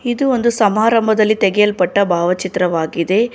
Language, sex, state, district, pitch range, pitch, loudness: Kannada, female, Karnataka, Bangalore, 180-225 Hz, 210 Hz, -15 LUFS